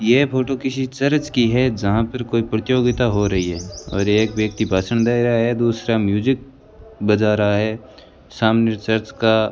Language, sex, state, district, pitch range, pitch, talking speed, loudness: Hindi, male, Rajasthan, Bikaner, 105-125 Hz, 115 Hz, 185 wpm, -19 LUFS